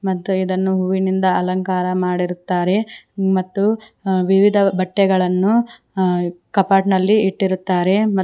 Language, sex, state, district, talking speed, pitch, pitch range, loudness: Kannada, female, Karnataka, Koppal, 85 wpm, 190 Hz, 185-195 Hz, -18 LUFS